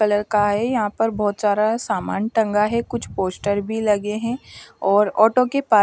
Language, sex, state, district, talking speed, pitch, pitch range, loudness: Hindi, female, Bihar, West Champaran, 195 wpm, 215 Hz, 205-225 Hz, -20 LUFS